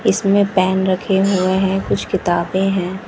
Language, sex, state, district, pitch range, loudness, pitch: Hindi, female, Bihar, West Champaran, 185-195 Hz, -17 LUFS, 190 Hz